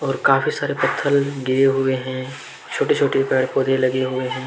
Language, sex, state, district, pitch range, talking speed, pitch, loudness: Hindi, male, Jharkhand, Deoghar, 130-135 Hz, 175 wpm, 130 Hz, -20 LUFS